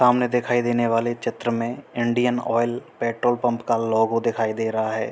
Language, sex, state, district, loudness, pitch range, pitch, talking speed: Hindi, male, Uttar Pradesh, Hamirpur, -23 LUFS, 115-120 Hz, 120 Hz, 185 wpm